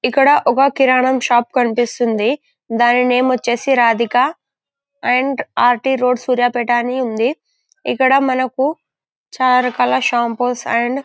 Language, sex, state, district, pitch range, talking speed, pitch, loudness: Telugu, female, Telangana, Karimnagar, 240-265 Hz, 125 wpm, 250 Hz, -15 LUFS